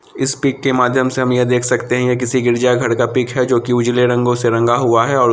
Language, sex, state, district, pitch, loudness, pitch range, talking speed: Hindi, female, Bihar, Samastipur, 125 Hz, -15 LUFS, 120-130 Hz, 305 wpm